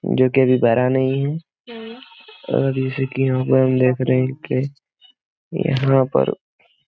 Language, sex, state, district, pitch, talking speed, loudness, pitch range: Hindi, male, Uttar Pradesh, Jyotiba Phule Nagar, 135 Hz, 150 wpm, -19 LUFS, 130-165 Hz